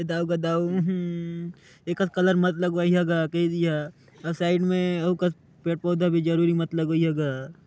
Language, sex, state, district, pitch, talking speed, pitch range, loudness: Hindi, male, Chhattisgarh, Sarguja, 170 Hz, 190 wpm, 165-180 Hz, -25 LUFS